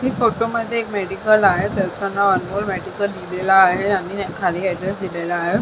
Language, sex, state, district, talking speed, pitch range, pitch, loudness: Marathi, female, Maharashtra, Sindhudurg, 180 wpm, 185-205 Hz, 195 Hz, -19 LUFS